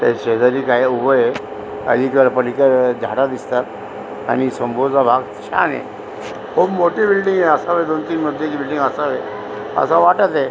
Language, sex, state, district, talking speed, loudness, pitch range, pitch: Marathi, female, Maharashtra, Aurangabad, 155 wpm, -17 LUFS, 125-155 Hz, 135 Hz